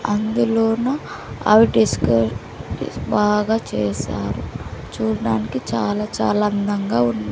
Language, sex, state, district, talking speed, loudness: Telugu, female, Andhra Pradesh, Sri Satya Sai, 75 wpm, -20 LUFS